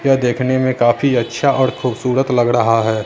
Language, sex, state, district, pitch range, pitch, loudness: Hindi, male, Bihar, Katihar, 120-130 Hz, 125 Hz, -15 LUFS